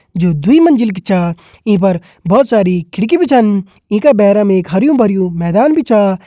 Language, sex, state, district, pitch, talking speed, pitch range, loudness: Kumaoni, male, Uttarakhand, Tehri Garhwal, 200 Hz, 170 wpm, 185-230 Hz, -12 LUFS